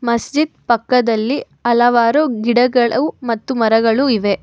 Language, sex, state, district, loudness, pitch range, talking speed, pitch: Kannada, female, Karnataka, Bangalore, -15 LUFS, 230-255 Hz, 95 wpm, 240 Hz